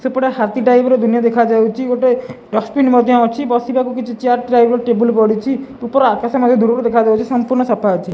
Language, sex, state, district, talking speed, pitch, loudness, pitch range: Odia, male, Odisha, Khordha, 185 wpm, 245 Hz, -14 LUFS, 230-255 Hz